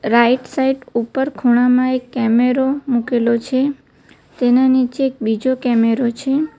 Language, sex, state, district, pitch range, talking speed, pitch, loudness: Gujarati, female, Gujarat, Valsad, 235-265 Hz, 125 wpm, 250 Hz, -17 LUFS